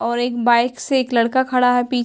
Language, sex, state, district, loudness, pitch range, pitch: Hindi, female, Bihar, Darbhanga, -17 LUFS, 240-250 Hz, 245 Hz